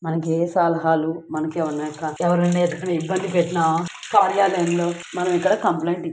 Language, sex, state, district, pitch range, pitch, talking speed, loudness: Telugu, female, Andhra Pradesh, Guntur, 160-175 Hz, 170 Hz, 135 wpm, -21 LUFS